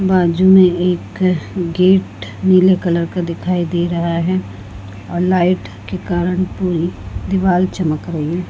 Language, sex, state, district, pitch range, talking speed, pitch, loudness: Hindi, female, Goa, North and South Goa, 170-185 Hz, 140 wpm, 175 Hz, -16 LUFS